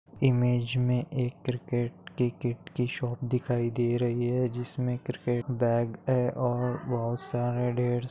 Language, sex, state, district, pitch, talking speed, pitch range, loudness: Hindi, male, Maharashtra, Pune, 125 Hz, 155 wpm, 120-125 Hz, -29 LUFS